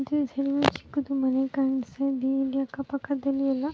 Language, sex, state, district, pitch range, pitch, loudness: Kannada, female, Karnataka, Raichur, 270-280 Hz, 275 Hz, -27 LUFS